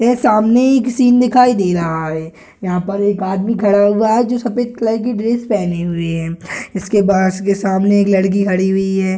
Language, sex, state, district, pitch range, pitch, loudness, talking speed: Hindi, male, Bihar, Gaya, 190-235 Hz, 200 Hz, -15 LUFS, 210 wpm